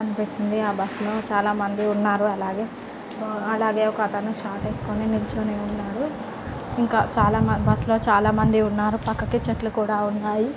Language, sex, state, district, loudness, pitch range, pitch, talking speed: Telugu, female, Andhra Pradesh, Srikakulam, -23 LUFS, 205-220 Hz, 215 Hz, 155 wpm